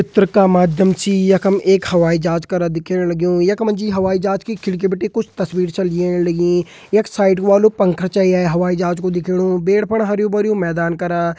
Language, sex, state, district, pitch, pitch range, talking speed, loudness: Hindi, male, Uttarakhand, Tehri Garhwal, 185 Hz, 175-200 Hz, 195 wpm, -16 LUFS